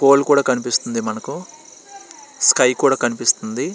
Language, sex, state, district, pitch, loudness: Telugu, male, Andhra Pradesh, Srikakulam, 140 Hz, -17 LUFS